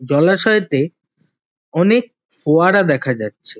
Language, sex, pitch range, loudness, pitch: Bengali, male, 135-190 Hz, -15 LUFS, 160 Hz